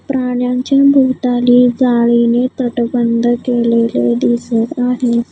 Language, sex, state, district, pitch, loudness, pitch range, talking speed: Marathi, female, Maharashtra, Gondia, 245 Hz, -13 LUFS, 235-250 Hz, 80 wpm